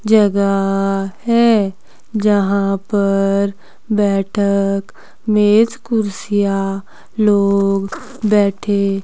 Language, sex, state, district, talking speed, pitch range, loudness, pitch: Hindi, female, Himachal Pradesh, Shimla, 60 wpm, 195-215 Hz, -16 LUFS, 200 Hz